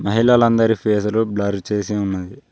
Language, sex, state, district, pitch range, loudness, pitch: Telugu, male, Telangana, Mahabubabad, 100-115 Hz, -18 LUFS, 105 Hz